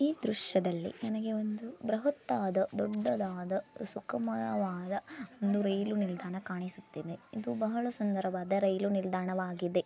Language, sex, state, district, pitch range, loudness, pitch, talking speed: Kannada, female, Karnataka, Dakshina Kannada, 185-220 Hz, -34 LUFS, 200 Hz, 110 wpm